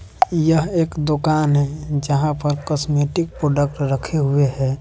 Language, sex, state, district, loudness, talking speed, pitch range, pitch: Hindi, male, Bihar, West Champaran, -19 LUFS, 135 wpm, 140-155 Hz, 145 Hz